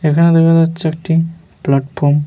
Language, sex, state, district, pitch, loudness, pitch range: Bengali, male, West Bengal, Jhargram, 165 Hz, -14 LUFS, 150-165 Hz